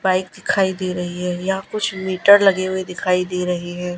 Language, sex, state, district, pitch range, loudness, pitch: Hindi, female, Gujarat, Gandhinagar, 180-195 Hz, -19 LUFS, 185 Hz